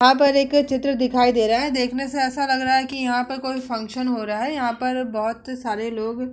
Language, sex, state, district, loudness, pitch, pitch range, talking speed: Hindi, female, Uttar Pradesh, Hamirpur, -21 LUFS, 255 Hz, 235-265 Hz, 255 wpm